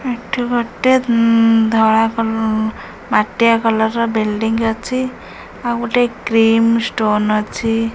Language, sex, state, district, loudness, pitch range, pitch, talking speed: Odia, female, Odisha, Khordha, -16 LUFS, 220-235 Hz, 225 Hz, 115 wpm